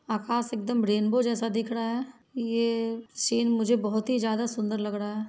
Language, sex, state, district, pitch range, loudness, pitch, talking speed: Hindi, female, Bihar, Muzaffarpur, 220-235 Hz, -28 LUFS, 230 Hz, 195 wpm